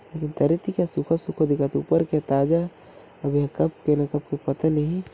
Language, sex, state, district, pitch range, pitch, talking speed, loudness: Chhattisgarhi, male, Chhattisgarh, Korba, 145-165 Hz, 150 Hz, 245 wpm, -24 LUFS